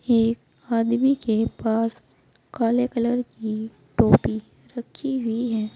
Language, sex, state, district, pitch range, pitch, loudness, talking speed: Hindi, female, Uttar Pradesh, Saharanpur, 225-245 Hz, 230 Hz, -23 LUFS, 115 wpm